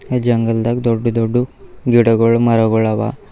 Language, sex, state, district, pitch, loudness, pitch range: Kannada, male, Karnataka, Bidar, 115 Hz, -15 LUFS, 115-120 Hz